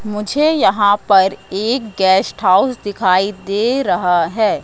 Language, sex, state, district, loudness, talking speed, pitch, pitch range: Hindi, female, Madhya Pradesh, Katni, -15 LUFS, 130 wpm, 205 Hz, 190-220 Hz